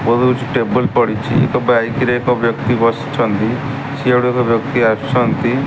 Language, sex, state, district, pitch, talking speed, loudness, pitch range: Odia, male, Odisha, Sambalpur, 125 Hz, 135 wpm, -15 LUFS, 115-125 Hz